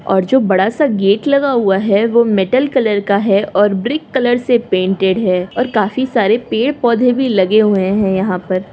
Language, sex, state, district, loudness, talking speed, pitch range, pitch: Hindi, female, Uttar Pradesh, Jyotiba Phule Nagar, -14 LUFS, 205 wpm, 195-250 Hz, 215 Hz